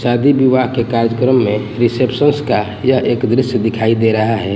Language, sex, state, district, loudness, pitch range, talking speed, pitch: Hindi, male, Gujarat, Gandhinagar, -14 LUFS, 115-130 Hz, 185 wpm, 120 Hz